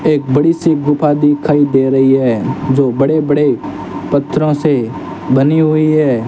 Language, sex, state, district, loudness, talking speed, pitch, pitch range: Hindi, male, Rajasthan, Bikaner, -13 LUFS, 155 wpm, 145 Hz, 135-155 Hz